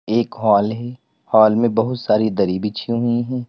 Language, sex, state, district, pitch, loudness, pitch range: Hindi, male, Uttar Pradesh, Lalitpur, 115 Hz, -18 LUFS, 105-120 Hz